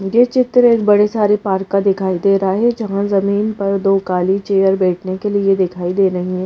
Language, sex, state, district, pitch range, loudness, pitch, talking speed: Hindi, female, Madhya Pradesh, Bhopal, 190-205 Hz, -15 LUFS, 195 Hz, 225 wpm